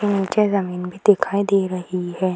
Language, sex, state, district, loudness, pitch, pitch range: Hindi, female, Bihar, Jahanabad, -20 LUFS, 190 Hz, 180-200 Hz